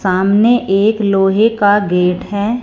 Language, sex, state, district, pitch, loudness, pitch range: Hindi, female, Punjab, Fazilka, 205 Hz, -13 LUFS, 195-215 Hz